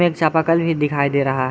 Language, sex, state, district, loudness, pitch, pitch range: Hindi, male, Jharkhand, Garhwa, -18 LUFS, 155 Hz, 140-165 Hz